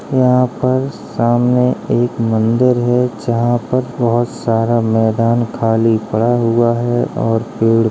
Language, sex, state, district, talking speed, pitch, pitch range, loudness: Hindi, male, Uttar Pradesh, Jalaun, 135 wpm, 120 Hz, 115-125 Hz, -15 LUFS